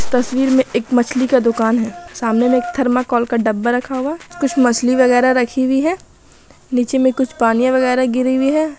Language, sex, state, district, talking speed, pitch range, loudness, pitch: Hindi, female, Bihar, Madhepura, 205 wpm, 240-260 Hz, -16 LUFS, 255 Hz